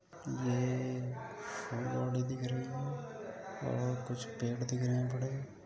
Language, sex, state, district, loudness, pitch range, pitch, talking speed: Hindi, male, Uttar Pradesh, Etah, -38 LUFS, 125-130 Hz, 125 Hz, 115 wpm